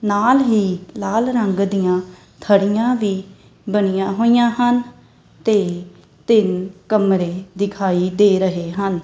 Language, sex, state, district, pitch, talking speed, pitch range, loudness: Punjabi, female, Punjab, Kapurthala, 200 Hz, 115 wpm, 190-215 Hz, -18 LUFS